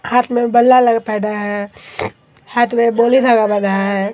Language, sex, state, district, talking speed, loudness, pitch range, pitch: Hindi, female, Bihar, Katihar, 160 wpm, -14 LUFS, 205-240 Hz, 235 Hz